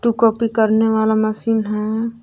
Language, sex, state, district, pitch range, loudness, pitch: Hindi, female, Jharkhand, Palamu, 220-230 Hz, -17 LUFS, 220 Hz